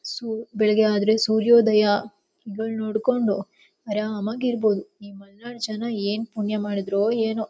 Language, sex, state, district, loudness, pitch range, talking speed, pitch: Kannada, female, Karnataka, Shimoga, -23 LUFS, 205-225 Hz, 120 wpm, 215 Hz